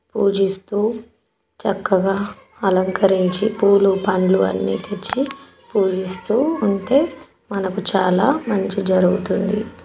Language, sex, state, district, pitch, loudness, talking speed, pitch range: Telugu, female, Telangana, Nalgonda, 195 Hz, -19 LUFS, 80 wpm, 190-215 Hz